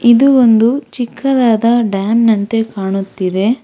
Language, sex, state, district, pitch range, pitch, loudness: Kannada, female, Karnataka, Bangalore, 200-245 Hz, 230 Hz, -13 LUFS